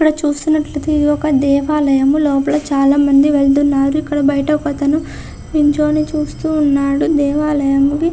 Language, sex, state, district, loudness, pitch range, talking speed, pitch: Telugu, female, Andhra Pradesh, Visakhapatnam, -14 LUFS, 280-300 Hz, 110 wpm, 295 Hz